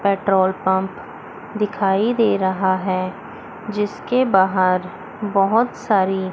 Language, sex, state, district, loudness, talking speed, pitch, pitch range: Hindi, female, Chandigarh, Chandigarh, -19 LUFS, 105 wpm, 195 Hz, 190-210 Hz